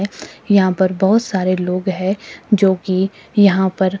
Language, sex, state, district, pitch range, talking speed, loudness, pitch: Hindi, female, Himachal Pradesh, Shimla, 185-200 Hz, 150 wpm, -16 LUFS, 190 Hz